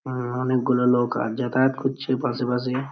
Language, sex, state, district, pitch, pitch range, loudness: Bengali, male, West Bengal, Purulia, 125 Hz, 125-130 Hz, -23 LUFS